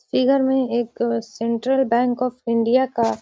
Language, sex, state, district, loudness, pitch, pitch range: Hindi, female, Bihar, Jahanabad, -20 LUFS, 240 Hz, 230-260 Hz